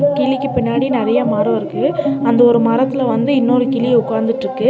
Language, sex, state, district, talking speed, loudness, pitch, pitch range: Tamil, female, Tamil Nadu, Nilgiris, 155 wpm, -15 LUFS, 255 Hz, 240-270 Hz